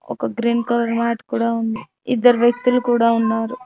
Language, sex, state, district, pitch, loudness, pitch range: Telugu, female, Telangana, Mahabubabad, 235 Hz, -18 LUFS, 230-240 Hz